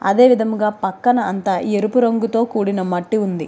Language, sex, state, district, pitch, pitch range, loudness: Telugu, female, Andhra Pradesh, Srikakulam, 210 Hz, 195-230 Hz, -17 LUFS